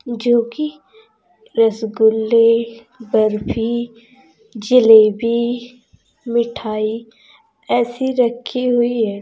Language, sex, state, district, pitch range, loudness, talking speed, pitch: Hindi, female, Uttar Pradesh, Saharanpur, 225-245 Hz, -16 LUFS, 65 wpm, 235 Hz